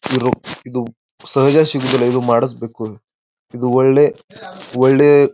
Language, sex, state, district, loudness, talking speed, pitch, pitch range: Kannada, male, Karnataka, Bijapur, -15 LUFS, 100 wpm, 130 Hz, 120-135 Hz